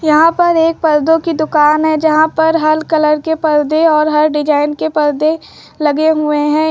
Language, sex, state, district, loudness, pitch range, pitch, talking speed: Hindi, female, Uttar Pradesh, Lucknow, -12 LUFS, 300-320 Hz, 310 Hz, 190 wpm